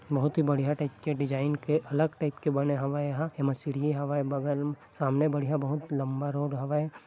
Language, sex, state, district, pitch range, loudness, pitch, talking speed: Chhattisgarhi, male, Chhattisgarh, Bilaspur, 140-150 Hz, -30 LUFS, 145 Hz, 205 wpm